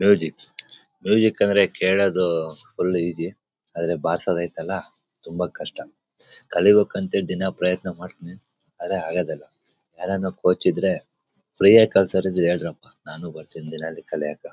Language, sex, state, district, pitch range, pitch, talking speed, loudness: Kannada, male, Karnataka, Bellary, 85-95 Hz, 90 Hz, 135 wpm, -22 LUFS